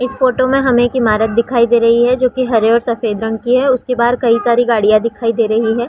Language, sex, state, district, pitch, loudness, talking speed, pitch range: Hindi, female, Chhattisgarh, Raigarh, 235 Hz, -13 LUFS, 285 wpm, 225-250 Hz